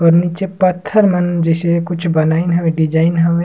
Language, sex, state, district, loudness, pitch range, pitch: Surgujia, male, Chhattisgarh, Sarguja, -15 LUFS, 165-175 Hz, 170 Hz